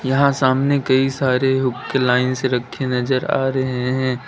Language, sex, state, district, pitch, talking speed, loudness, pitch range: Hindi, male, Uttar Pradesh, Lalitpur, 130 Hz, 170 wpm, -18 LUFS, 130-135 Hz